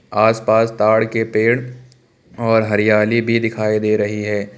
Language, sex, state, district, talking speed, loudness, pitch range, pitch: Hindi, male, Uttar Pradesh, Lucknow, 145 wpm, -16 LUFS, 105-115 Hz, 110 Hz